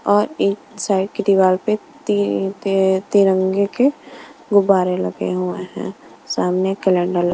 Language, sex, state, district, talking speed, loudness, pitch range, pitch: Hindi, female, Punjab, Kapurthala, 140 wpm, -18 LUFS, 175-200 Hz, 190 Hz